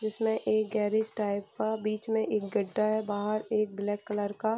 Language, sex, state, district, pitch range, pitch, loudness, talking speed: Hindi, female, Bihar, Gopalganj, 205-220 Hz, 215 Hz, -30 LUFS, 225 wpm